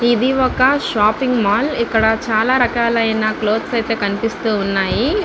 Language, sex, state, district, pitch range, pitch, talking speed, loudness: Telugu, female, Andhra Pradesh, Visakhapatnam, 215-255 Hz, 225 Hz, 115 wpm, -16 LUFS